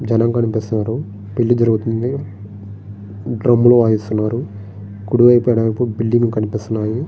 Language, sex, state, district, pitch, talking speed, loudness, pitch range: Telugu, male, Andhra Pradesh, Srikakulam, 115 Hz, 95 wpm, -16 LUFS, 105-120 Hz